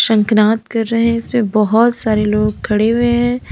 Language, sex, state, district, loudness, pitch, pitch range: Hindi, female, Uttar Pradesh, Lalitpur, -14 LUFS, 225 Hz, 215-235 Hz